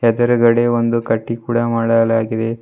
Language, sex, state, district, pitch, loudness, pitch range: Kannada, male, Karnataka, Bidar, 115 Hz, -16 LUFS, 115-120 Hz